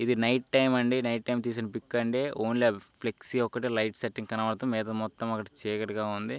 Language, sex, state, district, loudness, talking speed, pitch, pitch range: Telugu, male, Andhra Pradesh, Guntur, -30 LUFS, 190 wpm, 115 Hz, 110-125 Hz